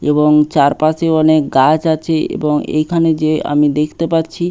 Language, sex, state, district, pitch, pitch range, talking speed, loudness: Bengali, male, West Bengal, Paschim Medinipur, 155 Hz, 150-160 Hz, 145 wpm, -14 LUFS